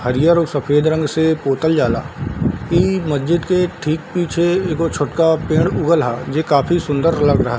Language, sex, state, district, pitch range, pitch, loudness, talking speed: Hindi, male, Bihar, Darbhanga, 145-170 Hz, 160 Hz, -17 LUFS, 180 wpm